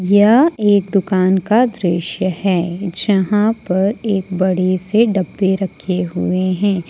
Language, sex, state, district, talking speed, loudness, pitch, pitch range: Hindi, female, Jharkhand, Ranchi, 130 wpm, -16 LUFS, 190 Hz, 185-205 Hz